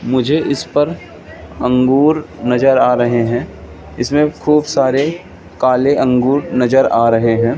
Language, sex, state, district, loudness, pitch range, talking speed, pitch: Hindi, male, Madhya Pradesh, Katni, -14 LUFS, 120-145 Hz, 135 wpm, 130 Hz